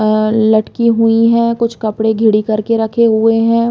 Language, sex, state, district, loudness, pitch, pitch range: Hindi, female, Chhattisgarh, Bilaspur, -12 LUFS, 225 Hz, 220-230 Hz